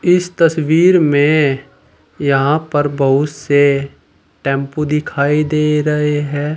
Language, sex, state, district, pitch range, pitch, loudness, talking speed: Hindi, male, Uttar Pradesh, Saharanpur, 140-155 Hz, 150 Hz, -14 LUFS, 110 wpm